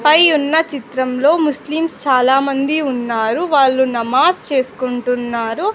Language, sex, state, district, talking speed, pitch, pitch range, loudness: Telugu, female, Andhra Pradesh, Sri Satya Sai, 105 wpm, 270 Hz, 250-305 Hz, -15 LUFS